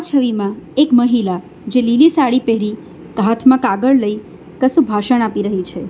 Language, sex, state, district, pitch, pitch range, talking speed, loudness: Gujarati, female, Gujarat, Valsad, 230 Hz, 205-260 Hz, 150 wpm, -15 LUFS